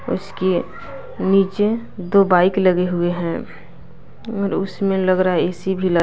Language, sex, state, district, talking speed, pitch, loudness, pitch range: Hindi, female, Bihar, West Champaran, 160 wpm, 185 Hz, -19 LUFS, 180-195 Hz